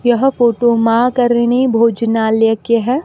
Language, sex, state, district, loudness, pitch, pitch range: Hindi, female, Rajasthan, Bikaner, -13 LUFS, 235 Hz, 230-245 Hz